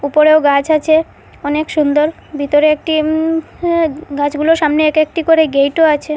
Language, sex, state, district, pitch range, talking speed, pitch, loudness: Bengali, female, Assam, Hailakandi, 295-315 Hz, 155 wpm, 305 Hz, -13 LUFS